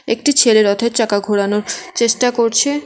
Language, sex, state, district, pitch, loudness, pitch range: Bengali, female, West Bengal, Alipurduar, 230 Hz, -15 LUFS, 210-245 Hz